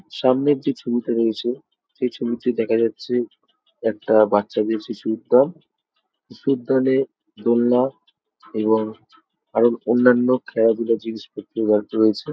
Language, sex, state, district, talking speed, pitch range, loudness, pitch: Bengali, male, West Bengal, Jalpaiguri, 105 wpm, 110-125 Hz, -20 LUFS, 115 Hz